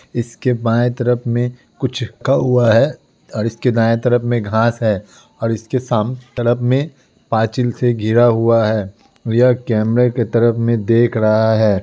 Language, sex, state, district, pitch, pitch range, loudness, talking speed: Hindi, male, Bihar, Kishanganj, 120 Hz, 115-125 Hz, -16 LUFS, 160 wpm